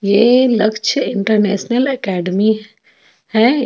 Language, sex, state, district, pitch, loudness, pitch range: Hindi, female, Jharkhand, Ranchi, 215 Hz, -15 LUFS, 200-240 Hz